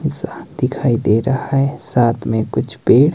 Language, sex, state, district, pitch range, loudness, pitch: Hindi, male, Himachal Pradesh, Shimla, 120-140 Hz, -17 LUFS, 135 Hz